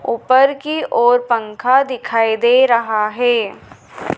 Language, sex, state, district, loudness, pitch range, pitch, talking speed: Hindi, female, Madhya Pradesh, Dhar, -15 LUFS, 225-255 Hz, 240 Hz, 115 wpm